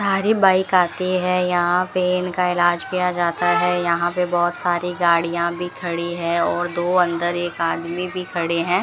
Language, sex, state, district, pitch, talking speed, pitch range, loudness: Hindi, female, Rajasthan, Bikaner, 175 Hz, 175 wpm, 175-180 Hz, -20 LUFS